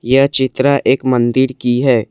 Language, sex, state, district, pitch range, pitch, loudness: Hindi, male, Assam, Kamrup Metropolitan, 125-135 Hz, 130 Hz, -14 LUFS